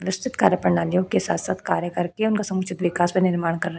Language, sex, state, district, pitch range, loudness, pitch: Hindi, female, Uttar Pradesh, Jyotiba Phule Nagar, 175-190 Hz, -22 LUFS, 180 Hz